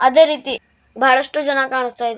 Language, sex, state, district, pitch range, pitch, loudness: Kannada, male, Karnataka, Bidar, 255-280 Hz, 260 Hz, -17 LUFS